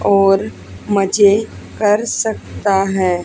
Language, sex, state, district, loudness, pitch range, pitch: Hindi, female, Haryana, Charkhi Dadri, -15 LUFS, 190-205 Hz, 195 Hz